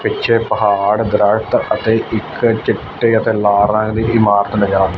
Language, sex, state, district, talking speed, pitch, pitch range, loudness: Punjabi, male, Punjab, Fazilka, 145 wpm, 105 Hz, 100-110 Hz, -14 LUFS